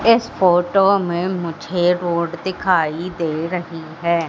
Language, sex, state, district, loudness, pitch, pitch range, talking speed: Hindi, female, Madhya Pradesh, Katni, -19 LUFS, 175 Hz, 170-185 Hz, 125 wpm